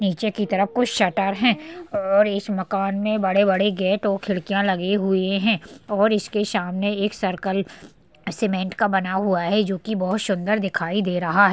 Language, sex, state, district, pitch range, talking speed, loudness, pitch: Hindi, female, Uttar Pradesh, Hamirpur, 190-210 Hz, 185 wpm, -22 LUFS, 200 Hz